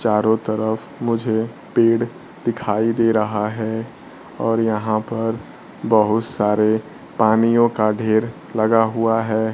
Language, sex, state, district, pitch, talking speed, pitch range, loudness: Hindi, male, Bihar, Kaimur, 110 Hz, 120 wpm, 110-115 Hz, -19 LUFS